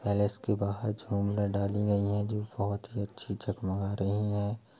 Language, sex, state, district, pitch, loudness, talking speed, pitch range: Hindi, male, Uttar Pradesh, Hamirpur, 100 Hz, -32 LUFS, 160 wpm, 100-105 Hz